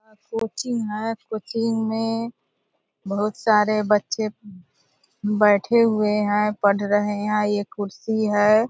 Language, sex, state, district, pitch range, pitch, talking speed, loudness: Hindi, female, Bihar, Purnia, 205-220 Hz, 210 Hz, 125 wpm, -22 LUFS